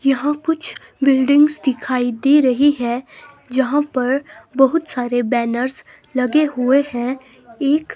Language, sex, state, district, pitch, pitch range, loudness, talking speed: Hindi, female, Himachal Pradesh, Shimla, 270 Hz, 250-290 Hz, -18 LUFS, 120 wpm